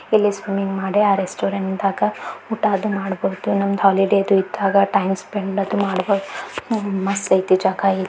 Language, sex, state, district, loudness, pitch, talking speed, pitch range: Kannada, female, Karnataka, Belgaum, -19 LUFS, 195 Hz, 135 wpm, 195-200 Hz